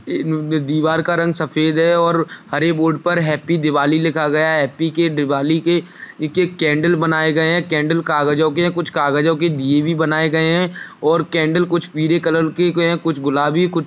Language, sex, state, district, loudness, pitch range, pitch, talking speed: Hindi, male, Chhattisgarh, Balrampur, -17 LUFS, 155-170 Hz, 160 Hz, 200 wpm